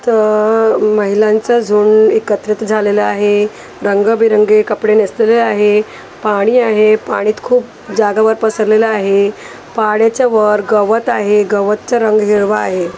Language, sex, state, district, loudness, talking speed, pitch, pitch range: Marathi, female, Maharashtra, Gondia, -12 LUFS, 115 wpm, 215 Hz, 210-220 Hz